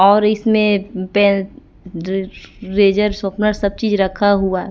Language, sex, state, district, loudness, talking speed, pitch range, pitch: Hindi, female, Bihar, Kaimur, -16 LUFS, 125 wpm, 195-210 Hz, 200 Hz